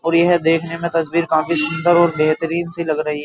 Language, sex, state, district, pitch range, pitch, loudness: Hindi, male, Uttar Pradesh, Jyotiba Phule Nagar, 155-170 Hz, 165 Hz, -17 LUFS